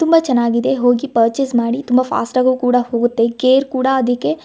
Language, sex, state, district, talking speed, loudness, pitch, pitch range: Kannada, female, Karnataka, Gulbarga, 190 wpm, -15 LUFS, 255 Hz, 240-265 Hz